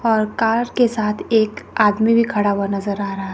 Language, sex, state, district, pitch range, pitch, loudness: Hindi, female, Chandigarh, Chandigarh, 200-230 Hz, 215 Hz, -18 LUFS